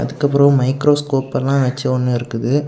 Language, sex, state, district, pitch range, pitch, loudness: Tamil, male, Tamil Nadu, Kanyakumari, 130-145 Hz, 135 Hz, -16 LUFS